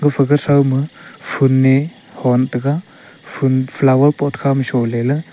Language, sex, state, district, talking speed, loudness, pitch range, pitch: Wancho, male, Arunachal Pradesh, Longding, 160 wpm, -16 LUFS, 130-145 Hz, 135 Hz